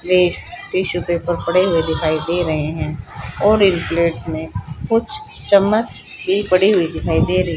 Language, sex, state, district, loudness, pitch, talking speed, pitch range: Hindi, female, Haryana, Rohtak, -18 LUFS, 175 Hz, 160 wpm, 165-200 Hz